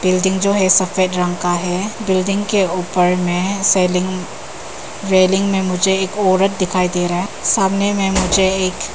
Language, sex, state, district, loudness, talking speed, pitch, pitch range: Hindi, female, Arunachal Pradesh, Papum Pare, -16 LUFS, 165 wpm, 185 Hz, 180-195 Hz